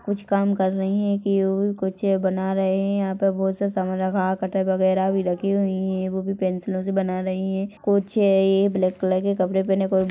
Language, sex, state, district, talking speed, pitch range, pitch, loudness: Hindi, female, Chhattisgarh, Korba, 225 wpm, 190-200 Hz, 190 Hz, -22 LUFS